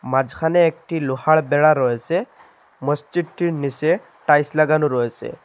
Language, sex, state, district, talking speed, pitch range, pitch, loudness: Bengali, male, Assam, Hailakandi, 120 wpm, 135-165 Hz, 155 Hz, -19 LUFS